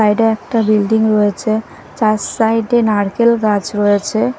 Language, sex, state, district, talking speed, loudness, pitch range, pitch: Bengali, female, Odisha, Nuapada, 135 wpm, -14 LUFS, 205-225 Hz, 215 Hz